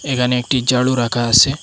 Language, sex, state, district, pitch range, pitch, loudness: Bengali, male, Assam, Hailakandi, 120-130 Hz, 125 Hz, -15 LUFS